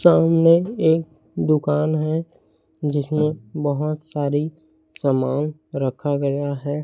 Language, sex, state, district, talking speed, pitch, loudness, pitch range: Hindi, male, Chhattisgarh, Raipur, 95 wpm, 150 Hz, -21 LUFS, 145-160 Hz